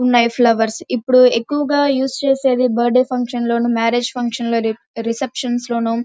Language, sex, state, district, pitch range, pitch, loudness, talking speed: Telugu, female, Andhra Pradesh, Krishna, 235-255 Hz, 245 Hz, -17 LUFS, 100 wpm